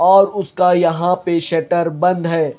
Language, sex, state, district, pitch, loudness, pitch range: Hindi, male, Himachal Pradesh, Shimla, 175 Hz, -16 LUFS, 165-180 Hz